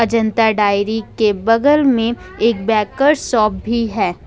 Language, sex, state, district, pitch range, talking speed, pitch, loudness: Hindi, female, Jharkhand, Ranchi, 210-235 Hz, 140 wpm, 225 Hz, -16 LUFS